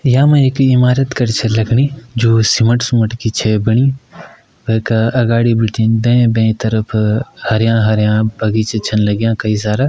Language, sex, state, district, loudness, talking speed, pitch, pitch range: Kumaoni, male, Uttarakhand, Uttarkashi, -13 LUFS, 140 wpm, 115 Hz, 110-125 Hz